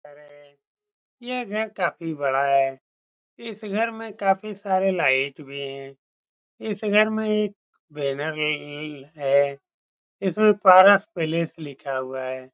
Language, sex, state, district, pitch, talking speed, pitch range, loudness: Hindi, male, Bihar, Saran, 160 Hz, 145 wpm, 140-210 Hz, -23 LUFS